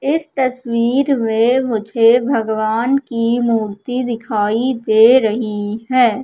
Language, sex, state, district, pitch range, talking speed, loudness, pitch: Hindi, female, Madhya Pradesh, Katni, 220-255 Hz, 105 wpm, -16 LUFS, 235 Hz